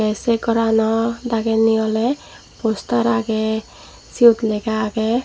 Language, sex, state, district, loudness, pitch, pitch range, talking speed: Chakma, female, Tripura, Dhalai, -18 LUFS, 220 Hz, 220-230 Hz, 115 wpm